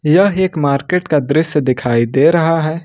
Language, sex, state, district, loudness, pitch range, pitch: Hindi, male, Jharkhand, Ranchi, -14 LUFS, 140-165 Hz, 155 Hz